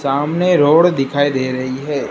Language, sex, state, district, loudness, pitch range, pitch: Hindi, female, Gujarat, Gandhinagar, -15 LUFS, 135-155 Hz, 145 Hz